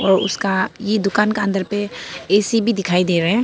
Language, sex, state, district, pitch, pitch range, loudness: Hindi, female, Arunachal Pradesh, Papum Pare, 200 Hz, 190-210 Hz, -18 LUFS